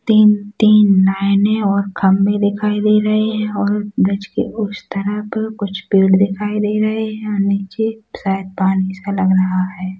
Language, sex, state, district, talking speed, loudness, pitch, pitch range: Hindi, female, Chhattisgarh, Rajnandgaon, 155 wpm, -16 LUFS, 205 Hz, 195-210 Hz